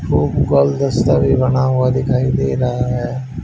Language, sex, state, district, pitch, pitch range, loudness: Hindi, male, Haryana, Charkhi Dadri, 125 Hz, 120-130 Hz, -16 LUFS